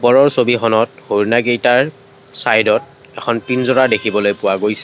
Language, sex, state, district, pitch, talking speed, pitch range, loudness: Assamese, male, Assam, Kamrup Metropolitan, 120 Hz, 125 wpm, 110-130 Hz, -15 LUFS